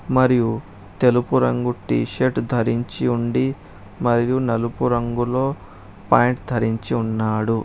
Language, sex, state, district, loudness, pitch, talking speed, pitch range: Telugu, male, Telangana, Hyderabad, -20 LUFS, 120 Hz, 100 wpm, 105-125 Hz